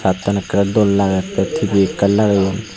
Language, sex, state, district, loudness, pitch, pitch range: Chakma, male, Tripura, Unakoti, -16 LUFS, 100 Hz, 95-100 Hz